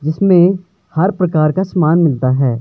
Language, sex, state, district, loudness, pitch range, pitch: Hindi, male, Himachal Pradesh, Shimla, -13 LUFS, 155-185 Hz, 170 Hz